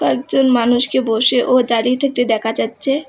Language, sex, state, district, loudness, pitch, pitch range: Bengali, female, West Bengal, Alipurduar, -15 LUFS, 245 Hz, 225-260 Hz